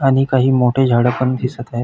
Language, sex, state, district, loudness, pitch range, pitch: Marathi, male, Maharashtra, Pune, -15 LUFS, 120-130 Hz, 130 Hz